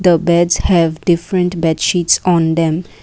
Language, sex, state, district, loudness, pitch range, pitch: English, female, Assam, Kamrup Metropolitan, -14 LUFS, 165-180 Hz, 170 Hz